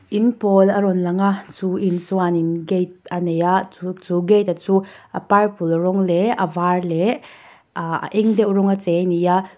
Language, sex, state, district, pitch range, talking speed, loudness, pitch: Mizo, female, Mizoram, Aizawl, 175-195 Hz, 205 wpm, -19 LUFS, 185 Hz